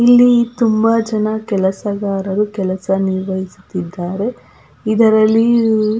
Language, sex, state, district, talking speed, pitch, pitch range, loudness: Kannada, female, Karnataka, Belgaum, 80 wpm, 215 Hz, 190-225 Hz, -15 LUFS